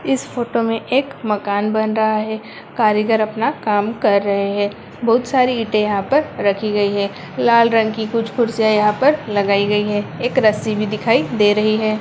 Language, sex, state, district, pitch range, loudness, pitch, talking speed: Hindi, female, Bihar, Bhagalpur, 210-230 Hz, -17 LUFS, 215 Hz, 195 wpm